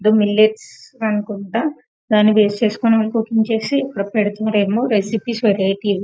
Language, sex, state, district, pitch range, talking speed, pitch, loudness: Telugu, female, Telangana, Karimnagar, 205-225 Hz, 130 wpm, 215 Hz, -17 LUFS